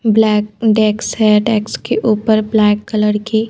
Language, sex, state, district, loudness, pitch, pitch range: Hindi, female, Madhya Pradesh, Bhopal, -14 LUFS, 215 Hz, 210-220 Hz